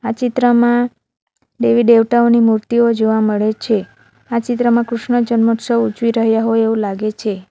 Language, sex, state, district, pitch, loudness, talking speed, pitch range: Gujarati, female, Gujarat, Valsad, 230 Hz, -15 LUFS, 135 wpm, 220-235 Hz